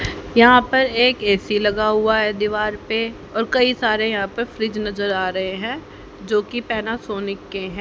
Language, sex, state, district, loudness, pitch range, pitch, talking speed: Hindi, female, Haryana, Jhajjar, -19 LUFS, 205-235 Hz, 215 Hz, 185 wpm